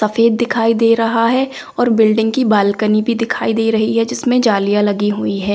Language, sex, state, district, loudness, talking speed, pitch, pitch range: Hindi, female, Delhi, New Delhi, -15 LUFS, 205 wpm, 225 Hz, 215-230 Hz